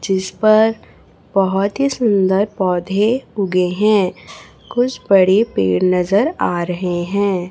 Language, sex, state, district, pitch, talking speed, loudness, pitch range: Hindi, female, Chhattisgarh, Raipur, 195 Hz, 120 wpm, -16 LUFS, 180-215 Hz